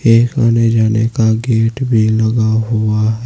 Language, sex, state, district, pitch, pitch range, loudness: Hindi, male, Uttar Pradesh, Saharanpur, 115 Hz, 110-115 Hz, -13 LUFS